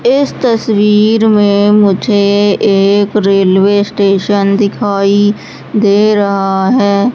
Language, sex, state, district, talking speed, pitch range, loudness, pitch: Hindi, female, Madhya Pradesh, Katni, 90 wpm, 200-210 Hz, -10 LUFS, 205 Hz